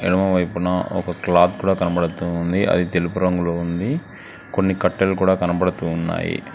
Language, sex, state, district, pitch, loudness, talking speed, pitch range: Telugu, male, Telangana, Hyderabad, 90 Hz, -20 LUFS, 145 wpm, 85-95 Hz